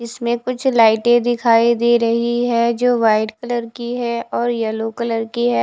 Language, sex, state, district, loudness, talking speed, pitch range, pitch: Hindi, female, Bihar, West Champaran, -17 LUFS, 180 wpm, 230-240 Hz, 235 Hz